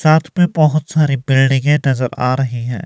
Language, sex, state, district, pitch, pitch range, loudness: Hindi, male, Himachal Pradesh, Shimla, 140 Hz, 130-155 Hz, -15 LUFS